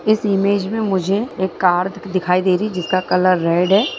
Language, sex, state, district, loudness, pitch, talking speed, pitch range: Hindi, female, Bihar, Begusarai, -17 LUFS, 190 Hz, 210 wpm, 180-200 Hz